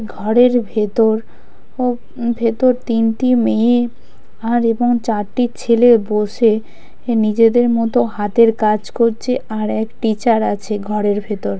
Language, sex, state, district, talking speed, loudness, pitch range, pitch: Bengali, female, West Bengal, Purulia, 120 wpm, -16 LUFS, 215-240 Hz, 230 Hz